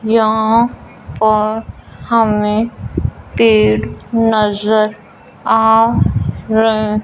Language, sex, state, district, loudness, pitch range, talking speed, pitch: Hindi, male, Punjab, Fazilka, -14 LUFS, 205-225 Hz, 60 wpm, 215 Hz